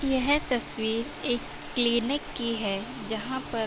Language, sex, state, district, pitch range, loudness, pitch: Hindi, female, Uttar Pradesh, Budaun, 225-260 Hz, -28 LUFS, 235 Hz